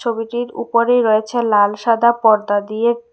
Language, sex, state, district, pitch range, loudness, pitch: Bengali, female, Tripura, West Tripura, 215-235 Hz, -16 LUFS, 230 Hz